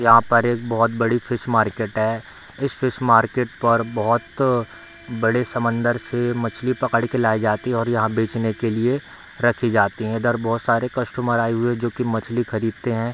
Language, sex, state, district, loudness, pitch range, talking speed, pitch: Hindi, male, Bihar, Bhagalpur, -21 LUFS, 115-120 Hz, 205 wpm, 115 Hz